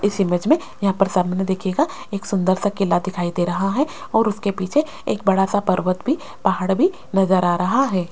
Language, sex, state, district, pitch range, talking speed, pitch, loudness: Hindi, female, Rajasthan, Jaipur, 185-210 Hz, 215 wpm, 195 Hz, -20 LUFS